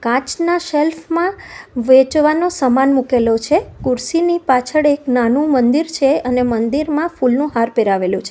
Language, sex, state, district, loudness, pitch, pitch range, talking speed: Gujarati, female, Gujarat, Valsad, -15 LUFS, 270 Hz, 250-315 Hz, 130 wpm